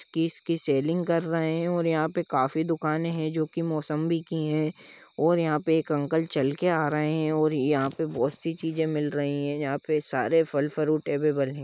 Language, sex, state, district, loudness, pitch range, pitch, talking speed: Hindi, male, Jharkhand, Jamtara, -27 LUFS, 150-165 Hz, 155 Hz, 215 wpm